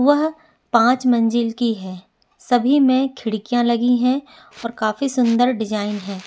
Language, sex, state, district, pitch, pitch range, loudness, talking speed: Hindi, female, Uttarakhand, Tehri Garhwal, 240 Hz, 220-260 Hz, -19 LUFS, 145 wpm